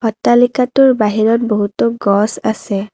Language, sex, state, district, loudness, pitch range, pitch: Assamese, female, Assam, Kamrup Metropolitan, -14 LUFS, 210-240 Hz, 220 Hz